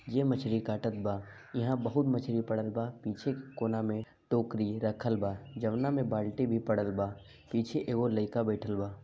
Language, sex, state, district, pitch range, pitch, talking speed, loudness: Bhojpuri, male, Bihar, Gopalganj, 105-120 Hz, 115 Hz, 180 wpm, -33 LUFS